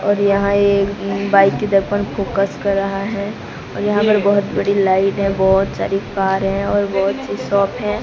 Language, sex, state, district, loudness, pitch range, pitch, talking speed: Hindi, female, Odisha, Sambalpur, -17 LUFS, 195-200 Hz, 200 Hz, 180 wpm